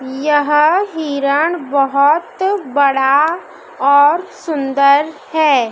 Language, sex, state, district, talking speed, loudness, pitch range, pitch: Hindi, male, Madhya Pradesh, Dhar, 75 wpm, -14 LUFS, 280-315 Hz, 290 Hz